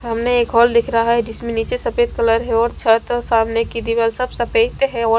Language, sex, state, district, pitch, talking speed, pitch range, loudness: Hindi, female, Haryana, Rohtak, 235 Hz, 240 wpm, 230-240 Hz, -17 LUFS